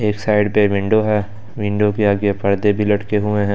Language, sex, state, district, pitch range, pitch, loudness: Hindi, male, Delhi, New Delhi, 100-105 Hz, 105 Hz, -17 LUFS